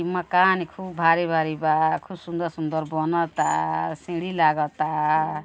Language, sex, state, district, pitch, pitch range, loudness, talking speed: Bhojpuri, female, Uttar Pradesh, Gorakhpur, 160 Hz, 155-175 Hz, -23 LUFS, 130 wpm